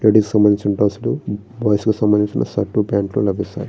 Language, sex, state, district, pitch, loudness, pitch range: Telugu, male, Andhra Pradesh, Srikakulam, 105 Hz, -18 LUFS, 100-110 Hz